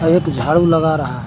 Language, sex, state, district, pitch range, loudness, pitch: Hindi, male, Jharkhand, Garhwa, 145-165 Hz, -15 LUFS, 160 Hz